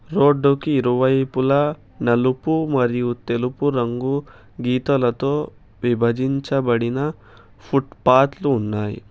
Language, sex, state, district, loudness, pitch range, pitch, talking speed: Telugu, male, Telangana, Hyderabad, -20 LUFS, 120-140 Hz, 130 Hz, 65 wpm